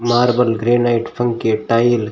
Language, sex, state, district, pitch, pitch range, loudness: Hindi, male, Rajasthan, Bikaner, 120 Hz, 115-120 Hz, -16 LUFS